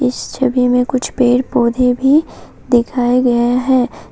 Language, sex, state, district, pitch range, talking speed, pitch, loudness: Hindi, female, Assam, Kamrup Metropolitan, 245-255 Hz, 145 wpm, 250 Hz, -14 LUFS